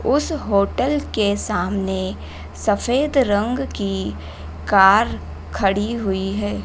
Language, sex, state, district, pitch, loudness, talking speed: Hindi, female, Madhya Pradesh, Dhar, 195 Hz, -20 LUFS, 100 wpm